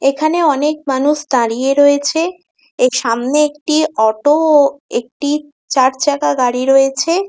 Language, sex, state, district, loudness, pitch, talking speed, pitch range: Bengali, female, West Bengal, Kolkata, -14 LUFS, 285 Hz, 130 wpm, 260-305 Hz